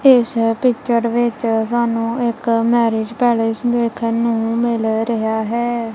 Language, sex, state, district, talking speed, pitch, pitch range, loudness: Punjabi, female, Punjab, Kapurthala, 120 wpm, 230 Hz, 225-240 Hz, -17 LUFS